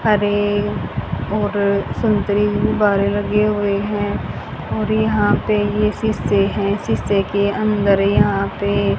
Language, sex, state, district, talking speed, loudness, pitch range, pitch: Hindi, female, Haryana, Charkhi Dadri, 125 wpm, -18 LUFS, 200-210 Hz, 205 Hz